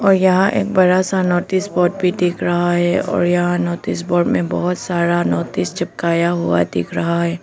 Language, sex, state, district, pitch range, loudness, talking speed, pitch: Hindi, female, Arunachal Pradesh, Papum Pare, 170-185 Hz, -17 LUFS, 195 wpm, 175 Hz